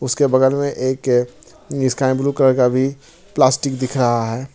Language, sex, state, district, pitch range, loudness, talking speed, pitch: Hindi, male, Jharkhand, Ranchi, 130-135 Hz, -17 LUFS, 170 wpm, 130 Hz